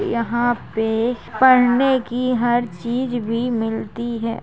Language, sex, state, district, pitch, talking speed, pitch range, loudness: Hindi, female, Uttar Pradesh, Jalaun, 240 Hz, 135 wpm, 230-245 Hz, -19 LUFS